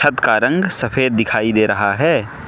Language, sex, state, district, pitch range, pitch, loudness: Hindi, male, Manipur, Imphal West, 110-130 Hz, 110 Hz, -15 LUFS